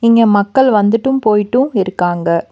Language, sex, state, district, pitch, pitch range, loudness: Tamil, female, Tamil Nadu, Nilgiris, 215 Hz, 195-245 Hz, -13 LUFS